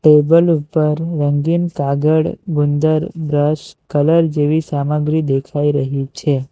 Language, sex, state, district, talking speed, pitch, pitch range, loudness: Gujarati, male, Gujarat, Valsad, 110 wpm, 150 Hz, 145-160 Hz, -16 LUFS